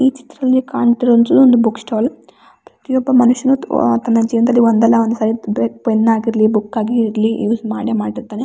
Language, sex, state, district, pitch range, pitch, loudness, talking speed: Kannada, female, Karnataka, Raichur, 220-250 Hz, 230 Hz, -15 LUFS, 150 wpm